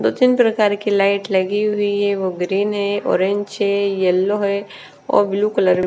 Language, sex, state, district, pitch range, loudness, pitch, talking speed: Hindi, female, Bihar, West Champaran, 195-205 Hz, -18 LUFS, 200 Hz, 195 wpm